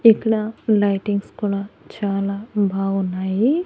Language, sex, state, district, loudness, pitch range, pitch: Telugu, female, Andhra Pradesh, Annamaya, -21 LUFS, 195-220 Hz, 205 Hz